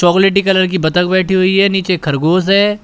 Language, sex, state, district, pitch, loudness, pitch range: Hindi, male, Uttar Pradesh, Shamli, 185 Hz, -12 LUFS, 180-195 Hz